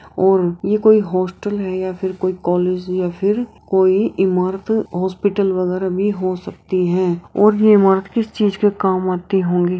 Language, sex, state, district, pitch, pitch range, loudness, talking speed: Hindi, female, Uttar Pradesh, Jyotiba Phule Nagar, 190 Hz, 185-205 Hz, -17 LUFS, 170 wpm